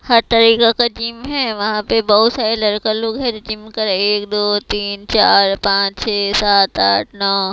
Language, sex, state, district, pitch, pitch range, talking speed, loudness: Hindi, female, Himachal Pradesh, Shimla, 215 Hz, 200-225 Hz, 190 wpm, -15 LUFS